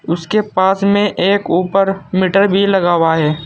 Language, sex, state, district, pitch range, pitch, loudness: Hindi, male, Uttar Pradesh, Saharanpur, 175-200 Hz, 190 Hz, -14 LUFS